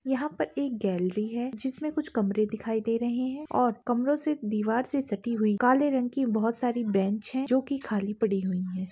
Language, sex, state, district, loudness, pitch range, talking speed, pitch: Hindi, female, Jharkhand, Sahebganj, -28 LUFS, 215-265 Hz, 220 wpm, 240 Hz